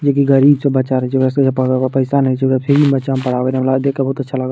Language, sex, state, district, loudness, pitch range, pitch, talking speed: Maithili, male, Bihar, Madhepura, -15 LUFS, 130-140 Hz, 135 Hz, 280 wpm